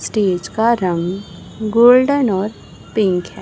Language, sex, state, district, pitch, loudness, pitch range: Hindi, female, Chhattisgarh, Raipur, 210 Hz, -16 LUFS, 185-235 Hz